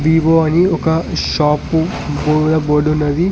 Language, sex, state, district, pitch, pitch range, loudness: Telugu, male, Telangana, Hyderabad, 160 Hz, 150-165 Hz, -15 LUFS